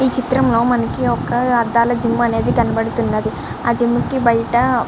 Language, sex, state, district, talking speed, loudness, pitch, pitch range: Telugu, male, Andhra Pradesh, Srikakulam, 170 wpm, -17 LUFS, 240 Hz, 235-250 Hz